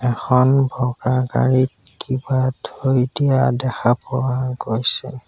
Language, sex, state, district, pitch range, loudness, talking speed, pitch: Assamese, male, Assam, Sonitpur, 125-130 Hz, -19 LUFS, 100 wpm, 130 Hz